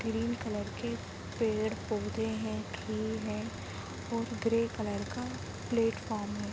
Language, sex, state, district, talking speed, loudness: Hindi, female, Chhattisgarh, Raigarh, 120 wpm, -35 LUFS